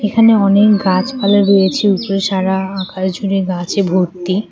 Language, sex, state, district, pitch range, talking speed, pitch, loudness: Bengali, female, West Bengal, Cooch Behar, 185-205 Hz, 135 wpm, 195 Hz, -14 LUFS